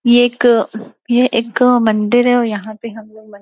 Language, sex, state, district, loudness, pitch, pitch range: Hindi, female, Uttar Pradesh, Gorakhpur, -14 LUFS, 230 Hz, 220-245 Hz